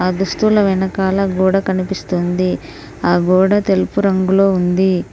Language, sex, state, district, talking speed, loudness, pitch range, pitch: Telugu, female, Telangana, Mahabubabad, 105 wpm, -15 LUFS, 185-195 Hz, 190 Hz